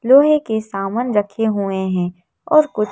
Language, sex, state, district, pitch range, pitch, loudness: Hindi, female, Madhya Pradesh, Bhopal, 195-245 Hz, 215 Hz, -17 LUFS